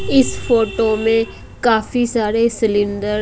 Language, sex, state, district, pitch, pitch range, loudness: Hindi, female, Odisha, Malkangiri, 225 Hz, 215-235 Hz, -17 LUFS